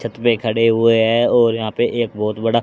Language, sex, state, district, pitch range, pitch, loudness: Hindi, male, Haryana, Rohtak, 110-120 Hz, 115 Hz, -16 LUFS